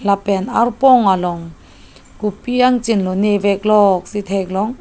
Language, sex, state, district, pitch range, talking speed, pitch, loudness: Karbi, female, Assam, Karbi Anglong, 195-230 Hz, 110 wpm, 205 Hz, -15 LUFS